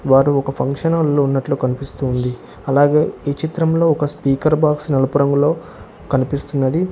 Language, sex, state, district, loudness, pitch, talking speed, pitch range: Telugu, male, Telangana, Hyderabad, -17 LUFS, 140 Hz, 140 wpm, 135-155 Hz